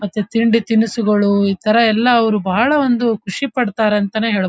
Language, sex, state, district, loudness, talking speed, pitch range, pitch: Kannada, female, Karnataka, Dharwad, -15 LUFS, 160 wpm, 205-230 Hz, 220 Hz